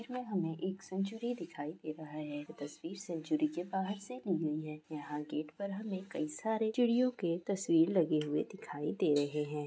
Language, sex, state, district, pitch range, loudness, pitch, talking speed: Hindi, female, Goa, North and South Goa, 155-200 Hz, -36 LUFS, 170 Hz, 195 wpm